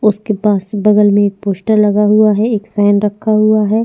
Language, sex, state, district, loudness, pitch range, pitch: Hindi, female, Chhattisgarh, Sukma, -12 LUFS, 205-215 Hz, 210 Hz